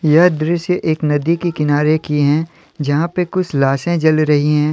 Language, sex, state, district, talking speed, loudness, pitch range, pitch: Hindi, male, Jharkhand, Deoghar, 190 wpm, -16 LUFS, 150-170 Hz, 155 Hz